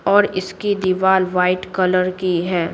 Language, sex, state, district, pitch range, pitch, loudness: Hindi, female, Bihar, Patna, 185-190 Hz, 185 Hz, -18 LUFS